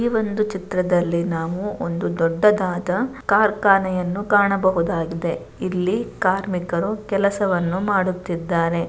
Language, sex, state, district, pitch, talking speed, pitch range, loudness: Kannada, female, Karnataka, Bellary, 185 Hz, 80 wpm, 175-205 Hz, -21 LUFS